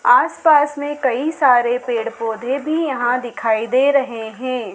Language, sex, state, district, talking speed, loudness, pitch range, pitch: Hindi, female, Madhya Pradesh, Dhar, 150 wpm, -18 LUFS, 235-290 Hz, 255 Hz